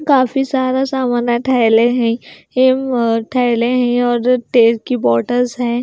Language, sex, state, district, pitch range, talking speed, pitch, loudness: Hindi, female, Bihar, Katihar, 235-255 Hz, 155 wpm, 245 Hz, -15 LUFS